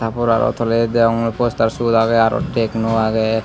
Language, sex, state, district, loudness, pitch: Chakma, male, Tripura, Unakoti, -17 LUFS, 115 Hz